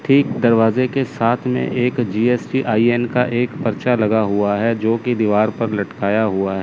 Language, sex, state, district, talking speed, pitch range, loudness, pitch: Hindi, male, Chandigarh, Chandigarh, 165 wpm, 110-125 Hz, -18 LUFS, 115 Hz